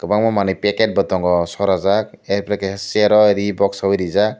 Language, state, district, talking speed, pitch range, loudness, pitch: Kokborok, Tripura, Dhalai, 150 wpm, 95-105 Hz, -17 LUFS, 100 Hz